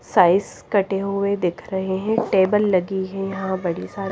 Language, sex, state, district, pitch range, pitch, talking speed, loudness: Hindi, female, Himachal Pradesh, Shimla, 190-200 Hz, 195 Hz, 160 wpm, -21 LUFS